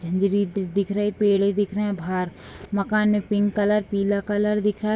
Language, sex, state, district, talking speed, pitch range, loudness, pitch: Hindi, female, Bihar, Gopalganj, 230 wpm, 200-210 Hz, -23 LUFS, 205 Hz